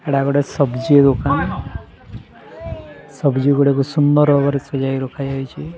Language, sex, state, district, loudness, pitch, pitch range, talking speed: Odia, male, Odisha, Sambalpur, -17 LUFS, 140 Hz, 135-145 Hz, 115 wpm